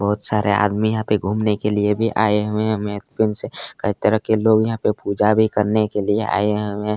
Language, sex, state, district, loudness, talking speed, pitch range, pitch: Hindi, male, Chhattisgarh, Kabirdham, -19 LUFS, 230 wpm, 105-110 Hz, 105 Hz